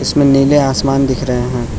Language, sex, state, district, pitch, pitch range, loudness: Hindi, male, Arunachal Pradesh, Lower Dibang Valley, 135 Hz, 125-140 Hz, -13 LUFS